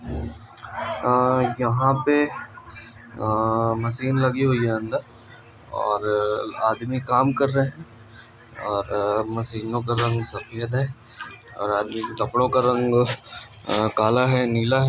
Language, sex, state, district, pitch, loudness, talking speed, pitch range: Hindi, male, Andhra Pradesh, Anantapur, 115 Hz, -23 LUFS, 95 wpm, 110-125 Hz